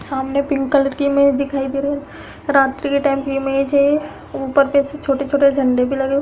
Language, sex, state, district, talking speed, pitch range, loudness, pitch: Hindi, female, Uttar Pradesh, Hamirpur, 230 wpm, 275-280 Hz, -17 LUFS, 280 Hz